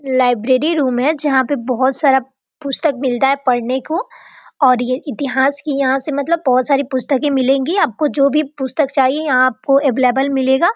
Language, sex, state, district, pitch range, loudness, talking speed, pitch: Hindi, female, Bihar, Gopalganj, 260-285 Hz, -16 LUFS, 180 wpm, 270 Hz